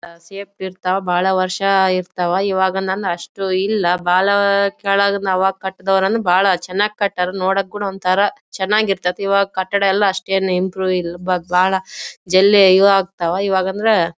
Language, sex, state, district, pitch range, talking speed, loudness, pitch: Kannada, female, Karnataka, Bellary, 185-200 Hz, 130 wpm, -17 LUFS, 190 Hz